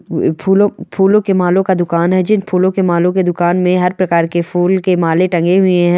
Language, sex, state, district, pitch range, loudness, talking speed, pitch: Hindi, female, Chhattisgarh, Balrampur, 175-190 Hz, -13 LUFS, 220 wpm, 180 Hz